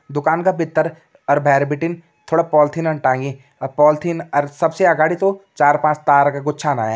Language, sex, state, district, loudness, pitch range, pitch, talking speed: Kumaoni, male, Uttarakhand, Tehri Garhwal, -17 LUFS, 145-165 Hz, 150 Hz, 190 wpm